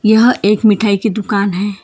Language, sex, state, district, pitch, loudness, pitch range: Hindi, female, Karnataka, Bangalore, 210 Hz, -13 LUFS, 200-220 Hz